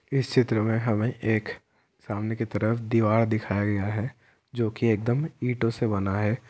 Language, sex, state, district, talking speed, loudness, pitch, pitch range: Hindi, male, Bihar, Kishanganj, 175 wpm, -26 LUFS, 115 Hz, 110-120 Hz